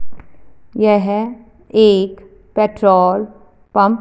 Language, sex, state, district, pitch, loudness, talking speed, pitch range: Hindi, female, Punjab, Fazilka, 205 Hz, -15 LUFS, 75 wpm, 195-215 Hz